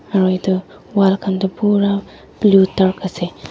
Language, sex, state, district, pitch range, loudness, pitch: Nagamese, female, Nagaland, Dimapur, 185-200 Hz, -17 LUFS, 190 Hz